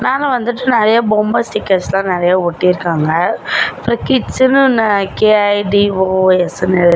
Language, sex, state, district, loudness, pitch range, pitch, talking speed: Tamil, female, Tamil Nadu, Namakkal, -13 LUFS, 180-235 Hz, 200 Hz, 105 wpm